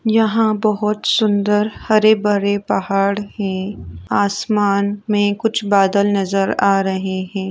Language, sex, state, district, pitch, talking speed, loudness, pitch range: Hindi, female, Uttar Pradesh, Etah, 205 Hz, 120 wpm, -17 LUFS, 195-210 Hz